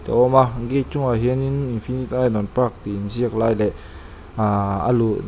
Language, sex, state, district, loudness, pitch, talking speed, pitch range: Mizo, male, Mizoram, Aizawl, -21 LUFS, 120 Hz, 205 wpm, 100-125 Hz